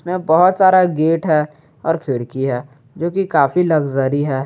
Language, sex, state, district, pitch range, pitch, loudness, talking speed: Hindi, male, Jharkhand, Garhwa, 140-175 Hz, 155 Hz, -16 LUFS, 175 wpm